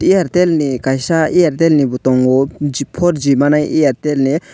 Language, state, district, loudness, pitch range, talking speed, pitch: Kokborok, Tripura, West Tripura, -14 LUFS, 135-165 Hz, 160 wpm, 145 Hz